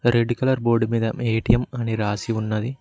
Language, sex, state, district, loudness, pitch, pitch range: Telugu, male, Telangana, Mahabubabad, -22 LUFS, 115 Hz, 110-120 Hz